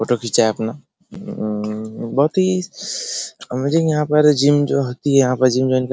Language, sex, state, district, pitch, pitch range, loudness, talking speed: Hindi, male, Bihar, Araria, 140 Hz, 125-150 Hz, -18 LUFS, 190 wpm